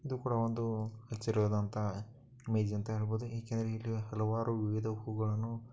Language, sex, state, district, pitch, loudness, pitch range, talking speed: Kannada, male, Karnataka, Chamarajanagar, 110 Hz, -36 LUFS, 110-115 Hz, 50 wpm